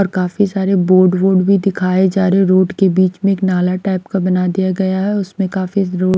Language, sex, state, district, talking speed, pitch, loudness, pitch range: Hindi, female, Himachal Pradesh, Shimla, 245 wpm, 190 Hz, -14 LUFS, 185-195 Hz